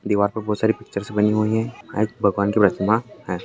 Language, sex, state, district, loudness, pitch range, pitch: Hindi, male, Bihar, Purnia, -21 LUFS, 100-110 Hz, 105 Hz